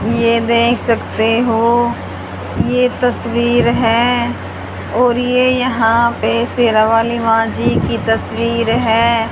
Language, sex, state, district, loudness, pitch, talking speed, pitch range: Hindi, female, Haryana, Charkhi Dadri, -14 LUFS, 235 Hz, 115 wpm, 230-240 Hz